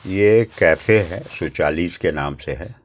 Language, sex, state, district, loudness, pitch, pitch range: Hindi, male, Delhi, New Delhi, -18 LUFS, 95 Hz, 85-110 Hz